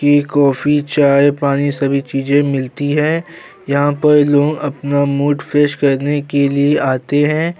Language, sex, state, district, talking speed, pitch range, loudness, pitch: Hindi, male, Uttar Pradesh, Jyotiba Phule Nagar, 150 wpm, 140-145 Hz, -14 LUFS, 145 Hz